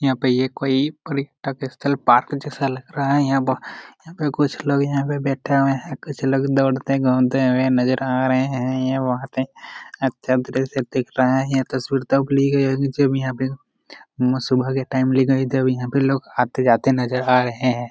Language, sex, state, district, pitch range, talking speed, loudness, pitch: Hindi, male, Jharkhand, Jamtara, 130-140 Hz, 210 wpm, -20 LUFS, 135 Hz